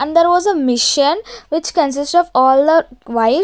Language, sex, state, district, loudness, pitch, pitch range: English, female, Maharashtra, Gondia, -14 LUFS, 290 Hz, 260-335 Hz